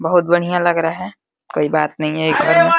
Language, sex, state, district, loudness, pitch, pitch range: Hindi, male, Uttar Pradesh, Deoria, -17 LUFS, 170 Hz, 155-180 Hz